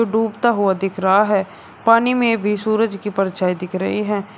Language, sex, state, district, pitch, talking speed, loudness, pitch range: Hindi, male, Uttar Pradesh, Shamli, 205 Hz, 190 wpm, -18 LUFS, 195-225 Hz